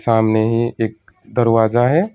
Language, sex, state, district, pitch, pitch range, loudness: Hindi, male, West Bengal, Alipurduar, 115 Hz, 110-120 Hz, -17 LUFS